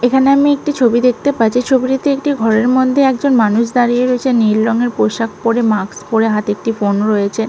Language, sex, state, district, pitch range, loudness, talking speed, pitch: Bengali, female, West Bengal, Malda, 220-260 Hz, -14 LUFS, 190 wpm, 240 Hz